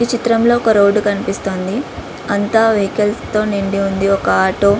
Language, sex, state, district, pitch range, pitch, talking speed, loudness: Telugu, female, Andhra Pradesh, Visakhapatnam, 195-225 Hz, 205 Hz, 150 wpm, -15 LUFS